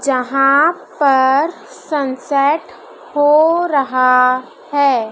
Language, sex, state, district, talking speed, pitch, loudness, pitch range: Hindi, male, Madhya Pradesh, Dhar, 70 wpm, 280 Hz, -14 LUFS, 260-300 Hz